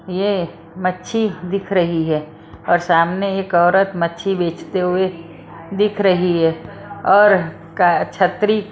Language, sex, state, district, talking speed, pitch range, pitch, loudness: Hindi, female, Maharashtra, Mumbai Suburban, 125 wpm, 170-195 Hz, 180 Hz, -17 LUFS